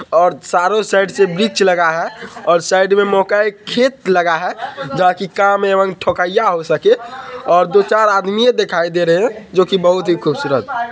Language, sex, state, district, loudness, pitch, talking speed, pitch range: Hindi, male, Bihar, Madhepura, -14 LUFS, 195 Hz, 185 wpm, 180-215 Hz